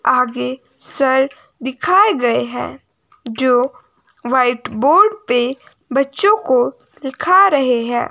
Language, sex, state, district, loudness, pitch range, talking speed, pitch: Hindi, female, Himachal Pradesh, Shimla, -16 LUFS, 250-315 Hz, 105 wpm, 260 Hz